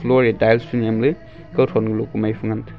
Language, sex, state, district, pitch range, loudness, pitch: Wancho, male, Arunachal Pradesh, Longding, 110-115 Hz, -19 LUFS, 110 Hz